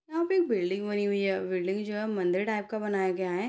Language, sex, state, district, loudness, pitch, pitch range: Hindi, female, Bihar, Purnia, -29 LUFS, 200 Hz, 185-215 Hz